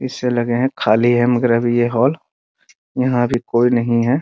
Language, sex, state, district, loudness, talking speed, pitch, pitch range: Hindi, male, Bihar, Muzaffarpur, -16 LUFS, 215 wpm, 120 Hz, 120-125 Hz